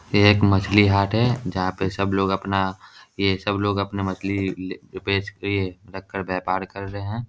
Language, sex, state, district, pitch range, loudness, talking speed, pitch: Hindi, male, Bihar, Jahanabad, 95-100 Hz, -23 LUFS, 180 wpm, 100 Hz